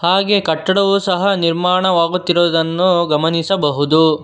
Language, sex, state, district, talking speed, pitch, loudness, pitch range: Kannada, male, Karnataka, Bangalore, 70 wpm, 175 Hz, -15 LUFS, 165-190 Hz